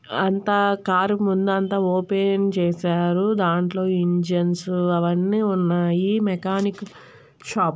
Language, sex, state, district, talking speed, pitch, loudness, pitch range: Telugu, female, Andhra Pradesh, Guntur, 100 wpm, 185 Hz, -21 LUFS, 175-195 Hz